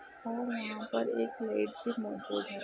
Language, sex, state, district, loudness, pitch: Hindi, female, Rajasthan, Nagaur, -36 LUFS, 215 Hz